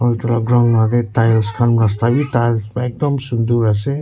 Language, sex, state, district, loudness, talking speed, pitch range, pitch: Nagamese, male, Nagaland, Kohima, -16 LUFS, 210 wpm, 115-120 Hz, 120 Hz